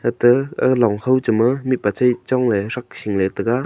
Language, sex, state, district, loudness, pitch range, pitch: Wancho, male, Arunachal Pradesh, Longding, -18 LUFS, 105-130 Hz, 120 Hz